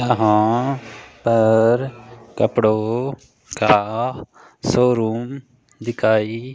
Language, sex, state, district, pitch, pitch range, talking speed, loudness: Hindi, male, Rajasthan, Jaipur, 120 Hz, 110-125 Hz, 55 wpm, -19 LUFS